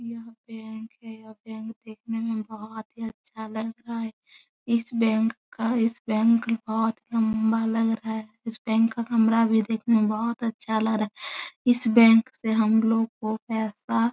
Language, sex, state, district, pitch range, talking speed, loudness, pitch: Hindi, female, Uttar Pradesh, Etah, 220-230 Hz, 180 wpm, -25 LUFS, 225 Hz